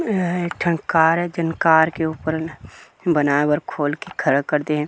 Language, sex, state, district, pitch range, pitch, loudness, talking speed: Chhattisgarhi, male, Chhattisgarh, Kabirdham, 150-170 Hz, 160 Hz, -20 LUFS, 220 wpm